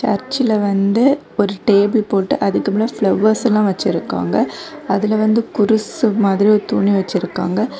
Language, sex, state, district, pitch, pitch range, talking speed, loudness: Tamil, female, Tamil Nadu, Kanyakumari, 210 Hz, 200-220 Hz, 110 wpm, -16 LUFS